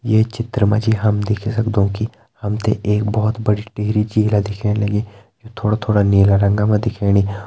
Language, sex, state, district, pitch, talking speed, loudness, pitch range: Hindi, male, Uttarakhand, Tehri Garhwal, 105 Hz, 200 wpm, -18 LUFS, 105-110 Hz